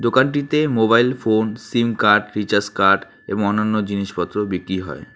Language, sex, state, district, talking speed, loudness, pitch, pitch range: Bengali, male, West Bengal, Alipurduar, 140 wpm, -19 LUFS, 105 Hz, 100-115 Hz